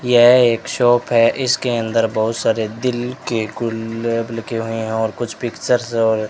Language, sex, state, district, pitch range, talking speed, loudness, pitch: Hindi, male, Rajasthan, Bikaner, 110-120 Hz, 180 wpm, -18 LUFS, 115 Hz